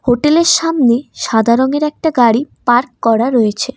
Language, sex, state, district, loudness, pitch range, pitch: Bengali, female, West Bengal, Cooch Behar, -13 LUFS, 235-295 Hz, 255 Hz